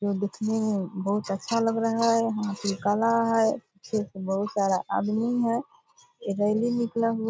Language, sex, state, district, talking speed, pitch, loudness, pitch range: Hindi, female, Bihar, Purnia, 165 wpm, 220 Hz, -26 LUFS, 200-230 Hz